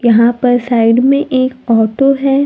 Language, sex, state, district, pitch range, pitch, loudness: Hindi, female, Maharashtra, Gondia, 235-275 Hz, 250 Hz, -11 LUFS